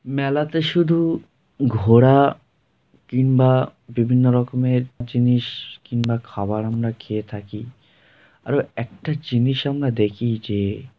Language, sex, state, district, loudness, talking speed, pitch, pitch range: Bengali, male, West Bengal, Jhargram, -20 LUFS, 105 wpm, 125 Hz, 115-135 Hz